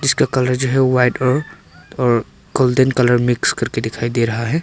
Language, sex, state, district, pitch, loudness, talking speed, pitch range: Hindi, male, Arunachal Pradesh, Papum Pare, 125 Hz, -17 LUFS, 180 wpm, 120-130 Hz